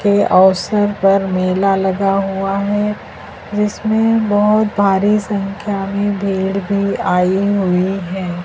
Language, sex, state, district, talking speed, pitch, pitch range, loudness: Hindi, male, Madhya Pradesh, Dhar, 120 wpm, 200 Hz, 190-205 Hz, -15 LUFS